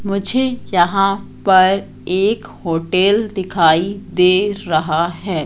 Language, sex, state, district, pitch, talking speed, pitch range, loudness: Hindi, female, Madhya Pradesh, Katni, 190 Hz, 100 wpm, 175-200 Hz, -16 LUFS